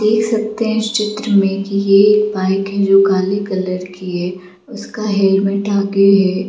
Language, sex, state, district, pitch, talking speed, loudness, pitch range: Hindi, female, Jharkhand, Jamtara, 195 Hz, 175 wpm, -15 LUFS, 190-210 Hz